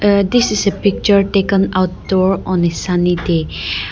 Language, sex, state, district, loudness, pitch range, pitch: English, female, Nagaland, Dimapur, -15 LUFS, 175-200 Hz, 190 Hz